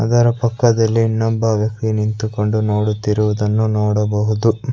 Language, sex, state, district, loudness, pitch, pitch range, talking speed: Kannada, male, Karnataka, Bangalore, -17 LUFS, 110 Hz, 105-115 Hz, 90 wpm